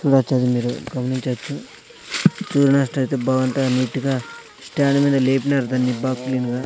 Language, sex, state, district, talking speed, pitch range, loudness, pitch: Telugu, male, Andhra Pradesh, Sri Satya Sai, 125 wpm, 125-135 Hz, -20 LUFS, 130 Hz